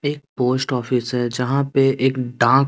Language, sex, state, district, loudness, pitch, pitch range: Hindi, male, Bihar, West Champaran, -20 LUFS, 130 Hz, 125-135 Hz